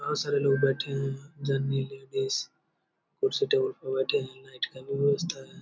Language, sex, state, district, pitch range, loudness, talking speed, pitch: Hindi, male, Bihar, Jamui, 135-165 Hz, -29 LUFS, 180 wpm, 140 Hz